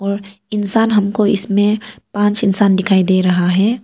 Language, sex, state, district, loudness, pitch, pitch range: Hindi, female, Arunachal Pradesh, Papum Pare, -15 LUFS, 205 Hz, 195-210 Hz